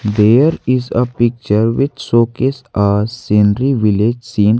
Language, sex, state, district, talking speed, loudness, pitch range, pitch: English, male, Jharkhand, Garhwa, 130 wpm, -14 LUFS, 105-125 Hz, 115 Hz